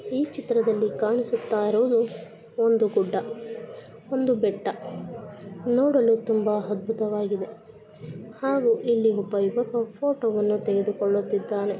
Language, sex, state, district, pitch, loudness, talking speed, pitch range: Kannada, female, Karnataka, Belgaum, 220 Hz, -24 LUFS, 105 wpm, 210-235 Hz